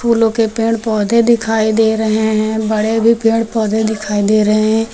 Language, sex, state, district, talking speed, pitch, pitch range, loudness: Hindi, female, Uttar Pradesh, Lucknow, 195 wpm, 220 Hz, 215-225 Hz, -14 LUFS